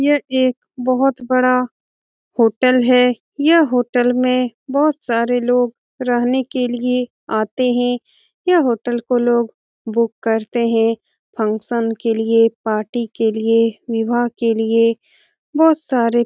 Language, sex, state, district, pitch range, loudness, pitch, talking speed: Hindi, female, Bihar, Saran, 230-255 Hz, -17 LUFS, 245 Hz, 135 wpm